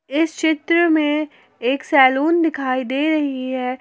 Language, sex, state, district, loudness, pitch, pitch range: Hindi, female, Jharkhand, Garhwa, -18 LUFS, 295 Hz, 260-315 Hz